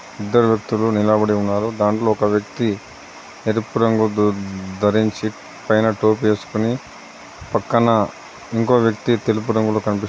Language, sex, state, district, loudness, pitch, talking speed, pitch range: Telugu, male, Telangana, Adilabad, -19 LUFS, 110 Hz, 115 wpm, 105-115 Hz